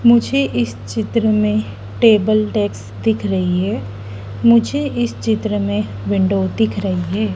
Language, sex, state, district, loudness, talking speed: Hindi, female, Madhya Pradesh, Dhar, -17 LUFS, 140 wpm